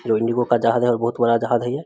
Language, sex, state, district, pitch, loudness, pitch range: Hindi, male, Bihar, Samastipur, 120 Hz, -19 LUFS, 115-120 Hz